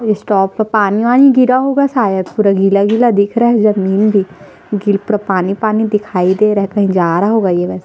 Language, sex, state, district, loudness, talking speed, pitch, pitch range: Hindi, female, Chhattisgarh, Sukma, -12 LUFS, 230 wpm, 205 Hz, 195-220 Hz